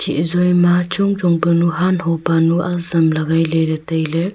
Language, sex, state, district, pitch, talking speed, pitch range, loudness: Wancho, female, Arunachal Pradesh, Longding, 170 Hz, 165 wpm, 165-175 Hz, -16 LUFS